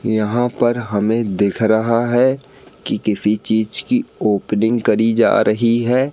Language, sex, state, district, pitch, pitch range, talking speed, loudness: Hindi, male, Madhya Pradesh, Katni, 115 Hz, 105-120 Hz, 145 wpm, -17 LUFS